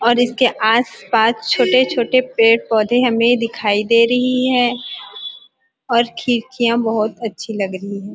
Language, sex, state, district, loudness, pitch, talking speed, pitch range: Hindi, female, Chhattisgarh, Bilaspur, -16 LUFS, 235 Hz, 125 wpm, 215-245 Hz